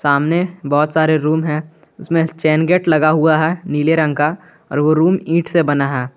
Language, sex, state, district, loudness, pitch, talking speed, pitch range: Hindi, male, Jharkhand, Garhwa, -16 LUFS, 155 Hz, 205 wpm, 150-165 Hz